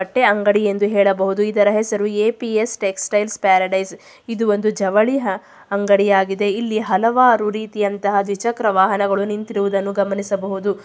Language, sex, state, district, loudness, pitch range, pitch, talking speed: Kannada, female, Karnataka, Chamarajanagar, -18 LUFS, 195-215 Hz, 205 Hz, 115 wpm